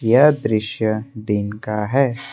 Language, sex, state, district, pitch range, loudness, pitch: Hindi, male, Assam, Kamrup Metropolitan, 105-120 Hz, -19 LUFS, 110 Hz